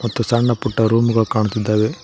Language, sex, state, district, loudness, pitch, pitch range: Kannada, male, Karnataka, Koppal, -17 LUFS, 115 Hz, 110-120 Hz